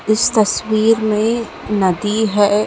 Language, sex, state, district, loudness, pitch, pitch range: Hindi, female, Bihar, Lakhisarai, -16 LUFS, 215 Hz, 210-220 Hz